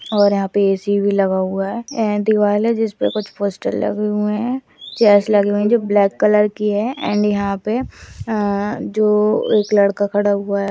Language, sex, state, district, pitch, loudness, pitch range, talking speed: Hindi, female, Bihar, Madhepura, 205 Hz, -17 LUFS, 200-215 Hz, 215 wpm